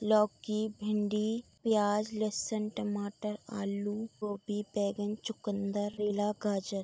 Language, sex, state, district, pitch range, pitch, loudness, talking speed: Hindi, female, Uttar Pradesh, Budaun, 205-215 Hz, 210 Hz, -34 LUFS, 105 wpm